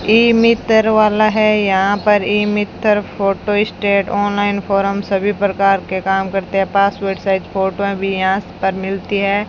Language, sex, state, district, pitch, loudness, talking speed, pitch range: Hindi, female, Rajasthan, Bikaner, 200 Hz, -15 LUFS, 165 wpm, 195-210 Hz